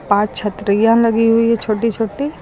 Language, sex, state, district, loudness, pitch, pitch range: Hindi, female, Uttar Pradesh, Lucknow, -15 LUFS, 225 Hz, 210-230 Hz